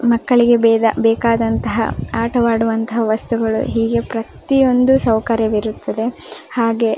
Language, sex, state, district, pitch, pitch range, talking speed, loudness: Kannada, female, Karnataka, Belgaum, 230 Hz, 225-240 Hz, 95 wpm, -16 LUFS